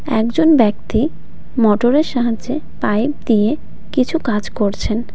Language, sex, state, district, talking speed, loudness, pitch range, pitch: Bengali, female, West Bengal, Cooch Behar, 105 wpm, -17 LUFS, 215-285 Hz, 235 Hz